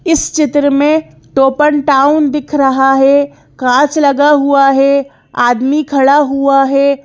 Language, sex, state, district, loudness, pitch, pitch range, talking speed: Hindi, female, Madhya Pradesh, Bhopal, -11 LUFS, 280 Hz, 270-295 Hz, 145 wpm